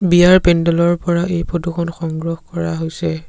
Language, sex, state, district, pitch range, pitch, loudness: Assamese, male, Assam, Sonitpur, 165-175 Hz, 170 Hz, -16 LUFS